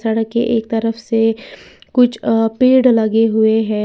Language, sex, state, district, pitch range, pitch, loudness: Hindi, female, Uttar Pradesh, Lalitpur, 220-235 Hz, 225 Hz, -15 LUFS